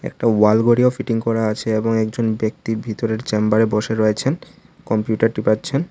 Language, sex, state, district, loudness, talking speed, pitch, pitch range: Bengali, male, Tripura, Unakoti, -19 LUFS, 160 wpm, 110 Hz, 110-115 Hz